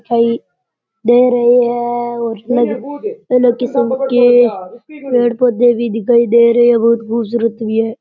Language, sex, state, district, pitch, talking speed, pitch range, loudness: Rajasthani, male, Rajasthan, Churu, 240 Hz, 150 wpm, 235-245 Hz, -13 LUFS